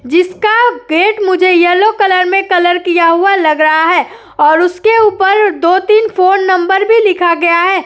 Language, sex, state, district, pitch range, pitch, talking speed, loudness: Hindi, female, Uttar Pradesh, Jyotiba Phule Nagar, 345-400 Hz, 370 Hz, 175 wpm, -10 LUFS